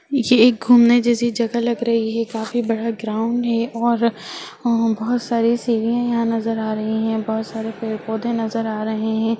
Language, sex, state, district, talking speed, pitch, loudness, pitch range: Hindi, female, Bihar, Jahanabad, 190 wpm, 230 Hz, -19 LUFS, 220-235 Hz